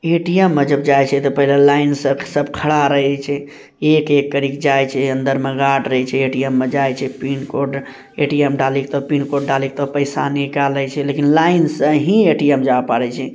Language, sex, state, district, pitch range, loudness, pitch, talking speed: Maithili, male, Bihar, Bhagalpur, 135-145 Hz, -16 LUFS, 140 Hz, 180 wpm